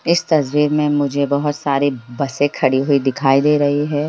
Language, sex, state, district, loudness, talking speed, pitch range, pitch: Hindi, male, Bihar, Lakhisarai, -17 LUFS, 190 wpm, 140-150 Hz, 145 Hz